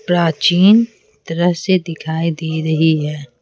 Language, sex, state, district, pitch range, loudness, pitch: Hindi, female, Bihar, Patna, 160-175 Hz, -15 LUFS, 165 Hz